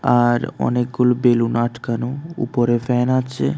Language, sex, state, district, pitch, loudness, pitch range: Bengali, male, Tripura, West Tripura, 120 Hz, -19 LUFS, 120-125 Hz